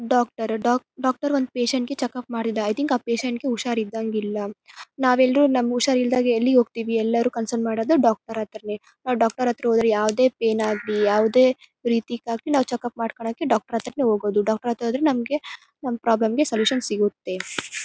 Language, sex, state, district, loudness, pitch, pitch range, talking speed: Kannada, female, Karnataka, Bellary, -22 LUFS, 235 Hz, 225-255 Hz, 180 wpm